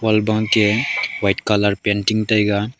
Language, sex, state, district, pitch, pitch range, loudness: Wancho, male, Arunachal Pradesh, Longding, 105 Hz, 105-110 Hz, -18 LUFS